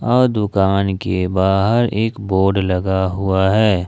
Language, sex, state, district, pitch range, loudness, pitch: Hindi, male, Jharkhand, Ranchi, 95-110 Hz, -17 LUFS, 95 Hz